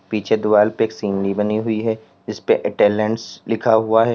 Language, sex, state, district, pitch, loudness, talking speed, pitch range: Hindi, male, Uttar Pradesh, Lalitpur, 110 Hz, -19 LUFS, 200 wpm, 105-115 Hz